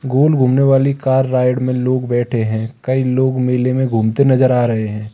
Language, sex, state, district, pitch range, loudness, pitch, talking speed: Hindi, male, Uttar Pradesh, Lalitpur, 120-130 Hz, -15 LUFS, 130 Hz, 210 wpm